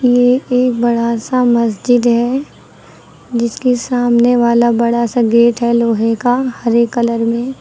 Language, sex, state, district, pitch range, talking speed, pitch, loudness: Hindi, female, Uttar Pradesh, Lucknow, 235-245 Hz, 140 wpm, 235 Hz, -13 LUFS